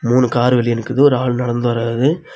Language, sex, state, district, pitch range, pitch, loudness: Tamil, male, Tamil Nadu, Kanyakumari, 120-130 Hz, 125 Hz, -16 LUFS